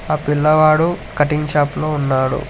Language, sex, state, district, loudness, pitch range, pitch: Telugu, male, Telangana, Hyderabad, -16 LUFS, 145-155 Hz, 150 Hz